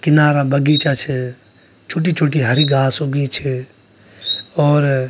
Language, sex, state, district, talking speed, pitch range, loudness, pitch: Garhwali, male, Uttarakhand, Tehri Garhwal, 120 wpm, 120-150 Hz, -16 LUFS, 135 Hz